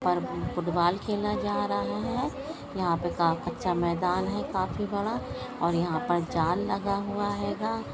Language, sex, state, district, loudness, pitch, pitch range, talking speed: Hindi, female, Maharashtra, Pune, -29 LUFS, 180 Hz, 170-200 Hz, 150 wpm